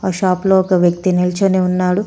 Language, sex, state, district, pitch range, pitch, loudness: Telugu, female, Telangana, Komaram Bheem, 180-190 Hz, 185 Hz, -15 LUFS